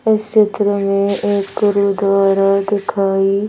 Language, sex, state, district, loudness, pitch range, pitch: Hindi, female, Madhya Pradesh, Bhopal, -15 LUFS, 195-205 Hz, 200 Hz